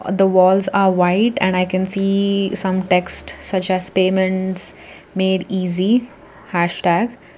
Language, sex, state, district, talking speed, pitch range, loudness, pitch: English, female, Karnataka, Bangalore, 140 wpm, 185-195 Hz, -17 LUFS, 190 Hz